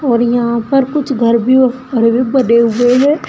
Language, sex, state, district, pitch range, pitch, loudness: Hindi, female, Uttar Pradesh, Shamli, 235-270 Hz, 245 Hz, -12 LUFS